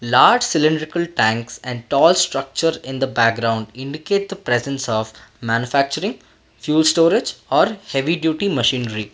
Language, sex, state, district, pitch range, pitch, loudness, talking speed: English, male, Karnataka, Bangalore, 115-160 Hz, 135 Hz, -18 LUFS, 130 wpm